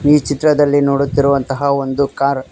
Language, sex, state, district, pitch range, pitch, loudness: Kannada, male, Karnataka, Koppal, 140-145 Hz, 140 Hz, -15 LUFS